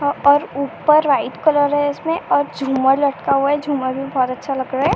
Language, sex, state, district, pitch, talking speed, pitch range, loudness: Hindi, female, Uttar Pradesh, Ghazipur, 285 Hz, 230 wpm, 270-290 Hz, -17 LUFS